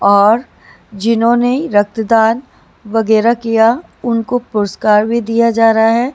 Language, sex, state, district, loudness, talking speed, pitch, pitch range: Hindi, female, Maharashtra, Mumbai Suburban, -13 LUFS, 115 wpm, 225 Hz, 220-235 Hz